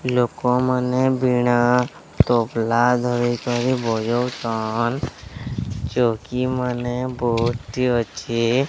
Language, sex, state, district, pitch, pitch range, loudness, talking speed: Odia, male, Odisha, Sambalpur, 120 Hz, 115-125 Hz, -21 LUFS, 60 wpm